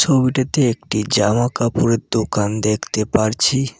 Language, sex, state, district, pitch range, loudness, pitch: Bengali, male, West Bengal, Cooch Behar, 105-130 Hz, -18 LUFS, 115 Hz